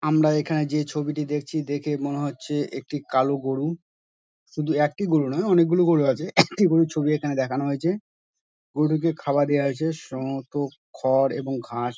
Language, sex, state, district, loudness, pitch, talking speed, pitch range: Bengali, male, West Bengal, Dakshin Dinajpur, -24 LUFS, 150 Hz, 170 wpm, 135-155 Hz